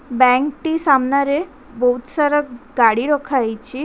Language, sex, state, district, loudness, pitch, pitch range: Odia, female, Odisha, Khordha, -17 LUFS, 275 Hz, 250-290 Hz